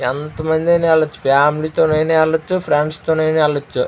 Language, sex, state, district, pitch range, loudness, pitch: Telugu, male, Andhra Pradesh, Srikakulam, 150-160 Hz, -16 LUFS, 155 Hz